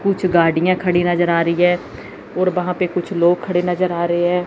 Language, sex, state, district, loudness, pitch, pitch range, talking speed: Hindi, female, Chandigarh, Chandigarh, -17 LUFS, 180 Hz, 175-185 Hz, 230 wpm